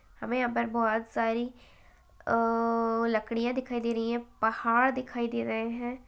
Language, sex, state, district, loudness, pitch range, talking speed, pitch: Hindi, female, Chhattisgarh, Bastar, -29 LUFS, 230-240 Hz, 160 wpm, 235 Hz